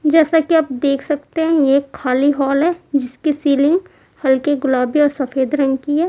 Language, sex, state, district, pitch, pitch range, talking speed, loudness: Hindi, female, Bihar, Kaimur, 285 Hz, 270-315 Hz, 185 wpm, -16 LUFS